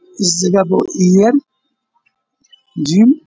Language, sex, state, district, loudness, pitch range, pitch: Hindi, male, Bihar, Bhagalpur, -13 LUFS, 195-270 Hz, 260 Hz